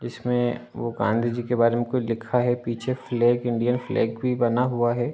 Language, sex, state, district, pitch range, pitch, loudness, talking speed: Hindi, male, Uttar Pradesh, Ghazipur, 115-125 Hz, 120 Hz, -24 LUFS, 210 wpm